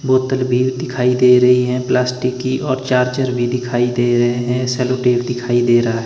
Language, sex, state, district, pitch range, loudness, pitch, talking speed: Hindi, male, Himachal Pradesh, Shimla, 120-125 Hz, -16 LUFS, 125 Hz, 210 wpm